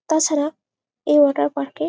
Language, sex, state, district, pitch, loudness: Bengali, female, West Bengal, Jalpaiguri, 295 Hz, -19 LUFS